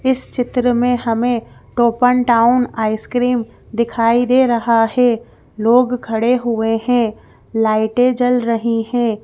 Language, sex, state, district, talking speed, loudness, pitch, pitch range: Hindi, female, Madhya Pradesh, Bhopal, 130 wpm, -16 LUFS, 235 Hz, 225-245 Hz